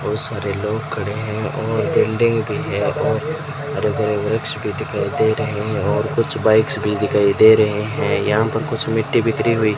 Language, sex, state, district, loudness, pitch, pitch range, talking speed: Hindi, male, Rajasthan, Bikaner, -18 LUFS, 110 Hz, 105-135 Hz, 195 wpm